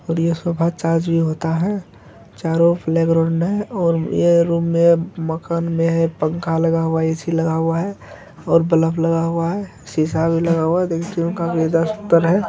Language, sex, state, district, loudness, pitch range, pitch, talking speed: Hindi, male, Bihar, Kishanganj, -18 LUFS, 165-170 Hz, 165 Hz, 160 wpm